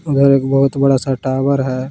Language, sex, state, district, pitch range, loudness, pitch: Hindi, male, Jharkhand, Palamu, 130-140 Hz, -15 LUFS, 135 Hz